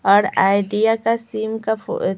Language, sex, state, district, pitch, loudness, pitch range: Hindi, female, Bihar, Patna, 220 Hz, -19 LUFS, 200-225 Hz